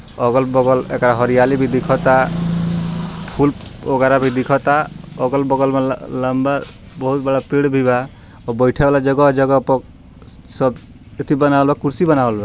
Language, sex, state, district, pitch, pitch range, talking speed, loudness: Bhojpuri, male, Bihar, Gopalganj, 135 Hz, 125-145 Hz, 140 wpm, -16 LUFS